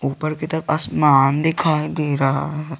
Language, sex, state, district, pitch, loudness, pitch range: Hindi, male, Jharkhand, Garhwa, 155 Hz, -19 LUFS, 140-155 Hz